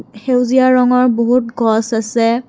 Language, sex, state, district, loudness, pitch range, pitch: Assamese, female, Assam, Kamrup Metropolitan, -14 LUFS, 230-250 Hz, 240 Hz